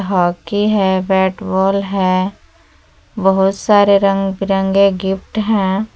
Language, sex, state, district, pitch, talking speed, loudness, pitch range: Hindi, female, Jharkhand, Palamu, 195 Hz, 110 wpm, -15 LUFS, 190-200 Hz